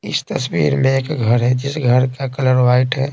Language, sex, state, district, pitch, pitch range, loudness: Hindi, male, Bihar, Patna, 130 Hz, 125-135 Hz, -16 LUFS